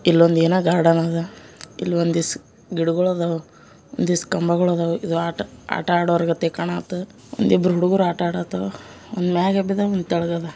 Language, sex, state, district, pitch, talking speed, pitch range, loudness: Kannada, male, Karnataka, Bijapur, 170 Hz, 70 wpm, 165-180 Hz, -21 LUFS